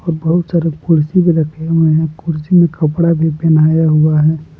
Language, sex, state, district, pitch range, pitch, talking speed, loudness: Hindi, male, Jharkhand, Palamu, 155-170 Hz, 160 Hz, 195 wpm, -13 LUFS